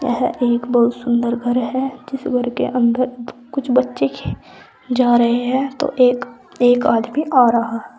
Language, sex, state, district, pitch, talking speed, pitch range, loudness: Hindi, female, Uttar Pradesh, Saharanpur, 245 Hz, 175 wpm, 235-255 Hz, -18 LUFS